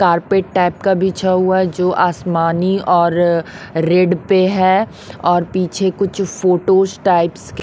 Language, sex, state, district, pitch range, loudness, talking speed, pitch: Hindi, female, Haryana, Rohtak, 175-190 Hz, -15 LUFS, 135 wpm, 185 Hz